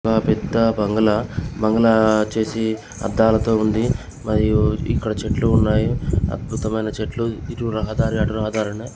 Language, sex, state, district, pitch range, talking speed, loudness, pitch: Telugu, male, Telangana, Karimnagar, 110-115 Hz, 125 wpm, -20 LUFS, 110 Hz